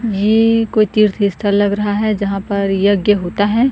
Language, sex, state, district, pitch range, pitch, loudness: Hindi, female, Chhattisgarh, Korba, 200-215 Hz, 205 Hz, -15 LUFS